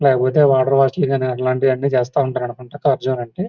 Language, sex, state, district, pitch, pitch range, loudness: Telugu, male, Andhra Pradesh, Guntur, 130 Hz, 130-140 Hz, -17 LUFS